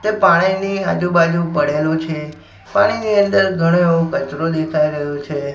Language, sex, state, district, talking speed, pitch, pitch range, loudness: Gujarati, male, Gujarat, Gandhinagar, 150 wpm, 165 Hz, 150-190 Hz, -16 LUFS